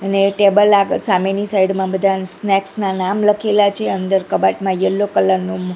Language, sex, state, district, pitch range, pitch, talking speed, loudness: Gujarati, female, Gujarat, Gandhinagar, 190-200 Hz, 195 Hz, 175 wpm, -16 LUFS